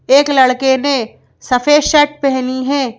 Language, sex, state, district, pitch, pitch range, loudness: Hindi, female, Madhya Pradesh, Bhopal, 270 Hz, 260-285 Hz, -13 LUFS